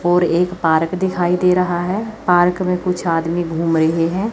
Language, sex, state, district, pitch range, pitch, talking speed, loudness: Hindi, female, Chandigarh, Chandigarh, 165-180 Hz, 175 Hz, 195 wpm, -17 LUFS